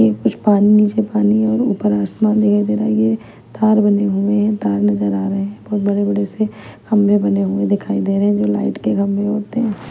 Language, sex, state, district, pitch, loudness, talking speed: Hindi, female, Punjab, Kapurthala, 200 Hz, -16 LUFS, 230 wpm